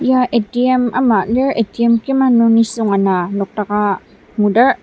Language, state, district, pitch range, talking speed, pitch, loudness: Ao, Nagaland, Dimapur, 210-250 Hz, 135 wpm, 230 Hz, -15 LUFS